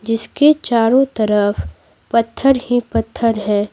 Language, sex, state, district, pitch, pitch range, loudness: Hindi, female, Bihar, Patna, 225 Hz, 205-245 Hz, -16 LUFS